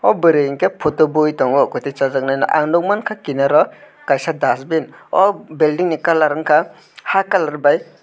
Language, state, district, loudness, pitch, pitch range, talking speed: Kokborok, Tripura, West Tripura, -16 LUFS, 155 Hz, 145-175 Hz, 180 wpm